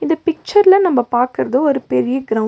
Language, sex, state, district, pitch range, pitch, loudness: Tamil, female, Tamil Nadu, Nilgiris, 245-340 Hz, 265 Hz, -15 LUFS